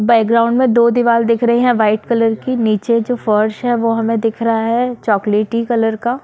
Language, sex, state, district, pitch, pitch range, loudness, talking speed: Hindi, female, Bihar, Saran, 230 Hz, 225-240 Hz, -15 LUFS, 210 wpm